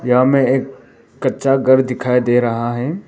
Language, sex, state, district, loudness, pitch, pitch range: Hindi, male, Arunachal Pradesh, Papum Pare, -16 LUFS, 125 Hz, 125-135 Hz